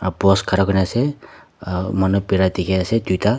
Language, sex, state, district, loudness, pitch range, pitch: Nagamese, male, Nagaland, Dimapur, -19 LUFS, 95-100 Hz, 95 Hz